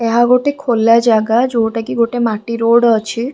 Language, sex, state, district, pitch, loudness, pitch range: Odia, female, Odisha, Khordha, 230 Hz, -13 LUFS, 230-240 Hz